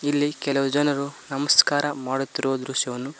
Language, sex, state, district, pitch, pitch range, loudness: Kannada, male, Karnataka, Koppal, 140 Hz, 135-145 Hz, -23 LUFS